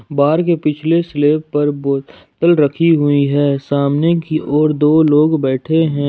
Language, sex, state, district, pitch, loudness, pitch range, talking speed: Hindi, male, Jharkhand, Ranchi, 150 Hz, -14 LUFS, 145-160 Hz, 155 wpm